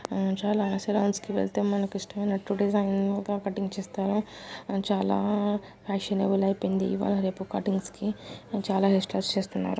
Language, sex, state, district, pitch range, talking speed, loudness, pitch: Telugu, female, Telangana, Karimnagar, 195-205 Hz, 130 wpm, -28 LUFS, 200 Hz